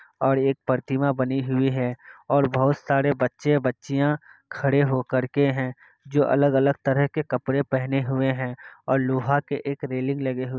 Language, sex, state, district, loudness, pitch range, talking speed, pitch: Hindi, male, Bihar, Kishanganj, -24 LUFS, 130-140 Hz, 180 wpm, 135 Hz